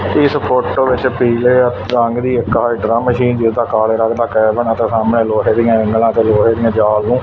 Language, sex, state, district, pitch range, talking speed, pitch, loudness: Punjabi, male, Punjab, Fazilka, 110-125 Hz, 190 wpm, 115 Hz, -13 LUFS